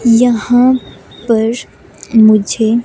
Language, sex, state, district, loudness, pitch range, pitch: Hindi, female, Himachal Pradesh, Shimla, -11 LUFS, 220-245 Hz, 230 Hz